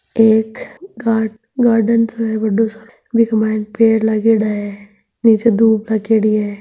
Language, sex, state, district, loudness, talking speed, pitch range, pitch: Marwari, female, Rajasthan, Nagaur, -15 LUFS, 145 wpm, 215-230 Hz, 220 Hz